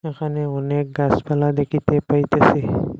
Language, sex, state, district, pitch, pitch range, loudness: Bengali, male, Assam, Hailakandi, 145 Hz, 145-150 Hz, -19 LUFS